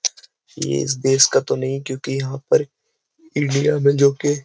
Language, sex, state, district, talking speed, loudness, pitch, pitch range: Hindi, male, Uttar Pradesh, Jyotiba Phule Nagar, 190 wpm, -19 LUFS, 140 Hz, 135-150 Hz